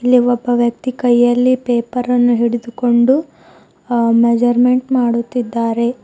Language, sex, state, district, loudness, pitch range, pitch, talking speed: Kannada, female, Karnataka, Bidar, -15 LUFS, 235-250 Hz, 245 Hz, 100 wpm